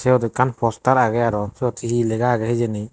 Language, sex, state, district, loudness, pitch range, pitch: Chakma, male, Tripura, Dhalai, -20 LUFS, 115-125 Hz, 120 Hz